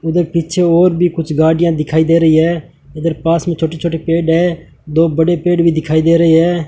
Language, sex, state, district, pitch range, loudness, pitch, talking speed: Hindi, male, Rajasthan, Bikaner, 160-170 Hz, -13 LUFS, 165 Hz, 225 wpm